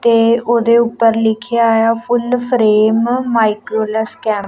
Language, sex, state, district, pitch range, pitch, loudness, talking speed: Punjabi, female, Punjab, Kapurthala, 220-235 Hz, 230 Hz, -14 LUFS, 135 wpm